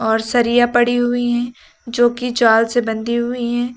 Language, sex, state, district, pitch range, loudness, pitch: Hindi, female, Uttar Pradesh, Lucknow, 235-245 Hz, -16 LUFS, 240 Hz